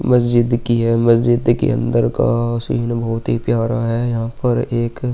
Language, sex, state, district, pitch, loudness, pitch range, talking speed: Hindi, male, Uttar Pradesh, Muzaffarnagar, 120 Hz, -17 LUFS, 115-120 Hz, 185 wpm